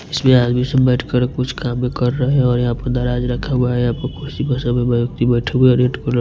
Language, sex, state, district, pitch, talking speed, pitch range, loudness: Hindi, male, Punjab, Fazilka, 125 Hz, 260 wpm, 120-130 Hz, -17 LUFS